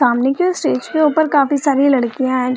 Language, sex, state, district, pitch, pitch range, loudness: Hindi, female, Bihar, Gaya, 280 Hz, 255-310 Hz, -15 LUFS